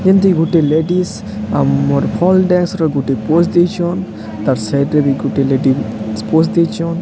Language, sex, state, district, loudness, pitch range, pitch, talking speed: Odia, male, Odisha, Sambalpur, -14 LUFS, 110-175 Hz, 160 Hz, 155 wpm